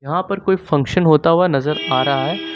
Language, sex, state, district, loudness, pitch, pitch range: Hindi, male, Uttar Pradesh, Lucknow, -16 LUFS, 165 Hz, 145-185 Hz